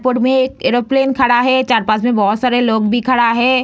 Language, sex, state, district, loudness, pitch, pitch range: Hindi, female, Bihar, Samastipur, -14 LUFS, 245 Hz, 235-255 Hz